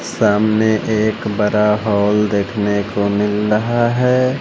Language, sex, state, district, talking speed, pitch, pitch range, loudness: Hindi, male, Bihar, West Champaran, 125 wpm, 105 Hz, 105-110 Hz, -16 LUFS